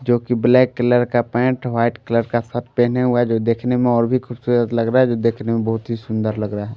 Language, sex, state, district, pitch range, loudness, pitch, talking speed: Hindi, male, Bihar, Patna, 115-125 Hz, -18 LUFS, 120 Hz, 265 wpm